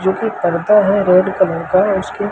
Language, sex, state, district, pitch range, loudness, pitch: Hindi, male, Madhya Pradesh, Umaria, 185-205 Hz, -14 LUFS, 190 Hz